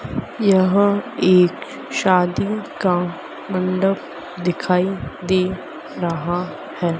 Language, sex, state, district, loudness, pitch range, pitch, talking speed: Hindi, female, Madhya Pradesh, Dhar, -20 LUFS, 180-195 Hz, 185 Hz, 75 wpm